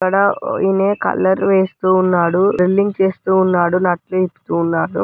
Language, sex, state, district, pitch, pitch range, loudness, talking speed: Telugu, male, Andhra Pradesh, Guntur, 185 Hz, 175-190 Hz, -16 LUFS, 95 wpm